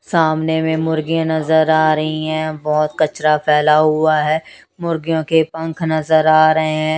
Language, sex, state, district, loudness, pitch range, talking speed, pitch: Hindi, female, Odisha, Nuapada, -16 LUFS, 155-160 Hz, 165 wpm, 155 Hz